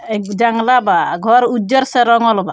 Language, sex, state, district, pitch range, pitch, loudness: Bhojpuri, female, Bihar, Muzaffarpur, 220-245 Hz, 235 Hz, -13 LUFS